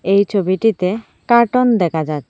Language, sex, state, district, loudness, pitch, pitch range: Bengali, female, Assam, Hailakandi, -16 LUFS, 200 Hz, 180-230 Hz